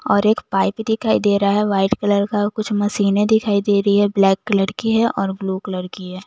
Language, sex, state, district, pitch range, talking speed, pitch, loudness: Hindi, female, Chandigarh, Chandigarh, 195-210 Hz, 250 wpm, 205 Hz, -18 LUFS